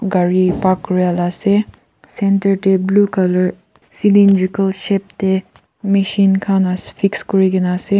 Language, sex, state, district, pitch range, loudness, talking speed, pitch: Nagamese, female, Nagaland, Kohima, 185-200 Hz, -15 LUFS, 135 wpm, 195 Hz